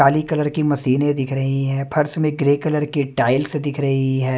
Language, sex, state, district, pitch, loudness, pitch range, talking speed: Hindi, male, Punjab, Kapurthala, 140 Hz, -19 LUFS, 135-150 Hz, 220 wpm